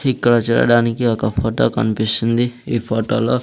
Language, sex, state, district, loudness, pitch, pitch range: Telugu, male, Andhra Pradesh, Sri Satya Sai, -17 LUFS, 115 Hz, 110-120 Hz